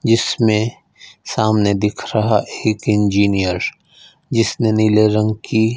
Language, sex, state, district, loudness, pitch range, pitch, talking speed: Hindi, male, Punjab, Fazilka, -17 LUFS, 105-110 Hz, 110 Hz, 105 wpm